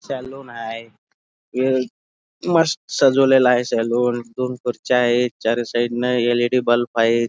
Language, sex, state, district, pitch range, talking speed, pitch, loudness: Marathi, male, Karnataka, Belgaum, 115-130 Hz, 140 wpm, 120 Hz, -19 LUFS